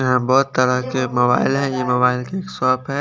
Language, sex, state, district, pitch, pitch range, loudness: Hindi, male, Chandigarh, Chandigarh, 130 Hz, 125-135 Hz, -18 LUFS